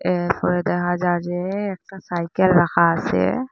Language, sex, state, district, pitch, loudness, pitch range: Bengali, female, Assam, Hailakandi, 175 Hz, -20 LUFS, 175-190 Hz